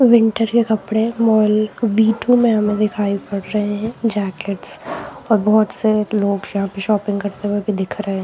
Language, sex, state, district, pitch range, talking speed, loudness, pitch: Hindi, female, Jharkhand, Sahebganj, 205-220 Hz, 190 wpm, -18 LUFS, 210 Hz